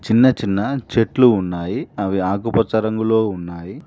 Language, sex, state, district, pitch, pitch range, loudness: Telugu, male, Telangana, Mahabubabad, 110 Hz, 95-115 Hz, -18 LUFS